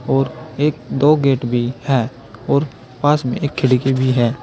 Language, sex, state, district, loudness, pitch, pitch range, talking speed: Hindi, male, Uttar Pradesh, Saharanpur, -18 LUFS, 130 Hz, 125-140 Hz, 175 wpm